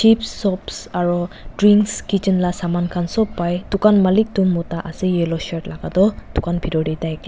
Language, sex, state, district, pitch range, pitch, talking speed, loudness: Nagamese, female, Nagaland, Dimapur, 170-200 Hz, 180 Hz, 165 wpm, -19 LUFS